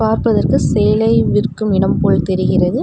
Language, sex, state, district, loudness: Tamil, female, Tamil Nadu, Namakkal, -14 LUFS